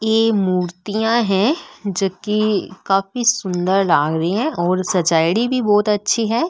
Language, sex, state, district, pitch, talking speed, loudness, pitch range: Marwari, female, Rajasthan, Nagaur, 200 Hz, 140 wpm, -18 LUFS, 185-220 Hz